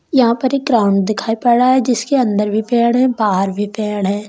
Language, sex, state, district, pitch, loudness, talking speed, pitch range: Hindi, female, Uttar Pradesh, Lalitpur, 230 Hz, -15 LUFS, 235 wpm, 210-250 Hz